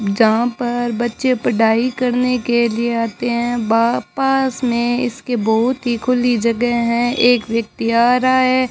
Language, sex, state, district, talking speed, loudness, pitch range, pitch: Hindi, male, Rajasthan, Bikaner, 160 wpm, -17 LUFS, 230-250 Hz, 240 Hz